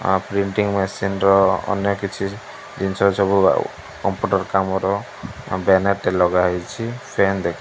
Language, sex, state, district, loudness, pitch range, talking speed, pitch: Odia, male, Odisha, Malkangiri, -20 LUFS, 95-100 Hz, 125 wpm, 95 Hz